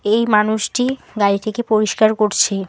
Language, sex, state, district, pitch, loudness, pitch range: Bengali, female, West Bengal, Alipurduar, 215 Hz, -17 LUFS, 210-225 Hz